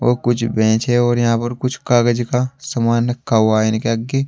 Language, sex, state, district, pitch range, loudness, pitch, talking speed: Hindi, male, Uttar Pradesh, Saharanpur, 115-125 Hz, -17 LUFS, 120 Hz, 225 wpm